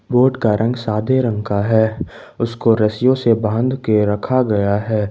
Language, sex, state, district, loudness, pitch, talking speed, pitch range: Hindi, male, Jharkhand, Ranchi, -17 LUFS, 110 Hz, 175 wpm, 105-125 Hz